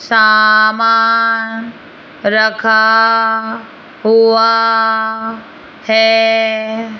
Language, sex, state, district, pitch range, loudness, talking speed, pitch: Hindi, female, Rajasthan, Jaipur, 220-225 Hz, -11 LUFS, 35 wpm, 225 Hz